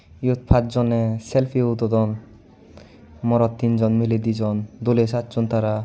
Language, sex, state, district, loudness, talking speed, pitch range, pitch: Chakma, male, Tripura, Unakoti, -21 LUFS, 115 wpm, 110-120 Hz, 115 Hz